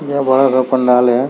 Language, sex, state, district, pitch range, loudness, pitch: Hindi, male, Chhattisgarh, Sarguja, 125-135 Hz, -13 LUFS, 130 Hz